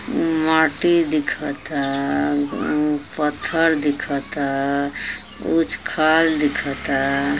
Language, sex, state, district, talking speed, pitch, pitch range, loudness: Bhojpuri, female, Uttar Pradesh, Ghazipur, 55 wpm, 145 Hz, 140-160 Hz, -20 LUFS